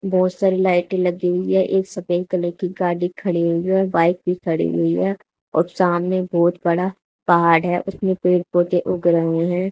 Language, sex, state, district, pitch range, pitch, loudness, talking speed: Hindi, female, Haryana, Charkhi Dadri, 175-185 Hz, 180 Hz, -19 LUFS, 195 wpm